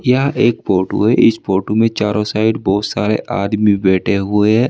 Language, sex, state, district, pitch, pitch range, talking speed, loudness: Hindi, male, Uttar Pradesh, Saharanpur, 105 Hz, 100-115 Hz, 190 wpm, -15 LUFS